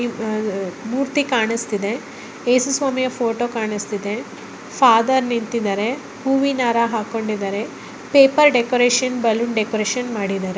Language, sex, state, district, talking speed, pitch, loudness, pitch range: Kannada, female, Karnataka, Bellary, 55 wpm, 235 Hz, -19 LUFS, 215-255 Hz